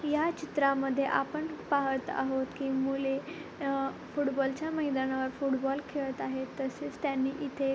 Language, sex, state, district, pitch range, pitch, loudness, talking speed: Marathi, female, Maharashtra, Pune, 270-290 Hz, 275 Hz, -32 LUFS, 115 wpm